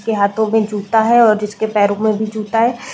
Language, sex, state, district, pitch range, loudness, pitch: Hindi, female, Uttar Pradesh, Deoria, 210-225 Hz, -15 LUFS, 220 Hz